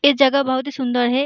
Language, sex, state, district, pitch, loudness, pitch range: Hindi, female, Bihar, Gaya, 270 Hz, -18 LUFS, 260-280 Hz